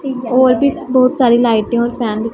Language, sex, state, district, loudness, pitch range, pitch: Hindi, female, Punjab, Pathankot, -13 LUFS, 235-260 Hz, 245 Hz